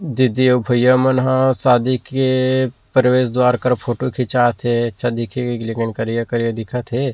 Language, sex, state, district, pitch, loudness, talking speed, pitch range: Chhattisgarhi, male, Chhattisgarh, Rajnandgaon, 125 Hz, -17 LUFS, 170 wpm, 120-130 Hz